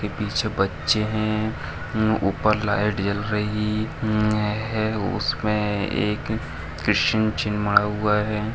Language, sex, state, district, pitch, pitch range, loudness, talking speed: Hindi, male, Bihar, Bhagalpur, 105 Hz, 105-110 Hz, -23 LUFS, 105 wpm